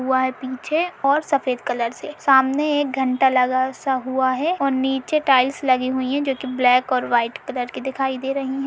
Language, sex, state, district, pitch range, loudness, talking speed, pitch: Hindi, female, Uttar Pradesh, Etah, 255-275 Hz, -20 LUFS, 215 wpm, 265 Hz